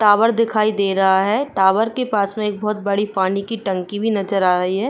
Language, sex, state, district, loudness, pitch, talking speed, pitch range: Hindi, female, Uttar Pradesh, Jyotiba Phule Nagar, -18 LUFS, 205 Hz, 245 wpm, 195-215 Hz